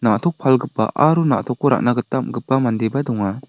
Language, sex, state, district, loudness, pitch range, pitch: Garo, male, Meghalaya, West Garo Hills, -18 LUFS, 115-140 Hz, 125 Hz